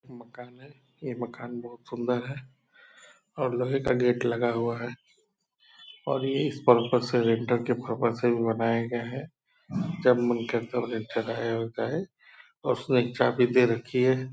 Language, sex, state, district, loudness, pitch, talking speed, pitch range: Hindi, male, Bihar, Purnia, -27 LUFS, 125 Hz, 165 wpm, 120-135 Hz